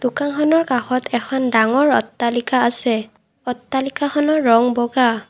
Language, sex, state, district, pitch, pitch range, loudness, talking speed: Assamese, female, Assam, Kamrup Metropolitan, 250 Hz, 235-275 Hz, -17 LUFS, 100 wpm